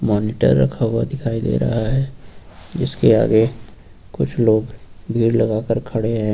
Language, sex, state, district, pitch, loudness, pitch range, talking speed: Hindi, male, Uttar Pradesh, Lucknow, 110 Hz, -18 LUFS, 105-115 Hz, 150 wpm